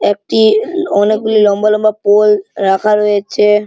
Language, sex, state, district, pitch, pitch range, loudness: Bengali, male, West Bengal, Malda, 210 Hz, 205-215 Hz, -12 LUFS